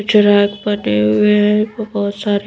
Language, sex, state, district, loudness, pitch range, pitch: Hindi, female, Madhya Pradesh, Bhopal, -14 LUFS, 205-210 Hz, 205 Hz